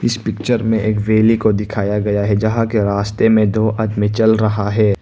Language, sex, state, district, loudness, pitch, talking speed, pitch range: Hindi, male, Arunachal Pradesh, Papum Pare, -16 LUFS, 110 Hz, 215 wpm, 105-110 Hz